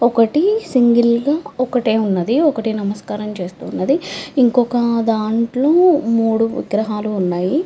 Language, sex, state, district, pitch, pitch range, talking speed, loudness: Telugu, female, Andhra Pradesh, Chittoor, 230 Hz, 215-255 Hz, 100 wpm, -17 LUFS